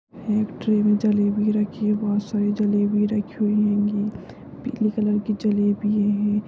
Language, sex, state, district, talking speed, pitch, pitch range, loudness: Hindi, female, Bihar, Jahanabad, 150 wpm, 210 Hz, 205-210 Hz, -22 LUFS